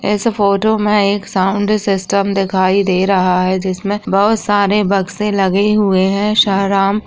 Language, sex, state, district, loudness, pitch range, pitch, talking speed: Hindi, female, Uttar Pradesh, Deoria, -14 LUFS, 195-210 Hz, 200 Hz, 155 wpm